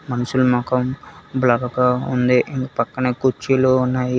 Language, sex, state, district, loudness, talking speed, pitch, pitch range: Telugu, male, Telangana, Hyderabad, -19 LUFS, 115 wpm, 125 Hz, 125-130 Hz